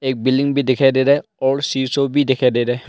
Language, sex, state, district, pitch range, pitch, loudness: Hindi, male, Arunachal Pradesh, Longding, 130-140 Hz, 135 Hz, -17 LUFS